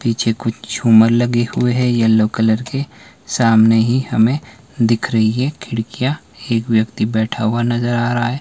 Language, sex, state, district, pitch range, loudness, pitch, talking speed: Hindi, male, Himachal Pradesh, Shimla, 110-120 Hz, -16 LUFS, 115 Hz, 170 wpm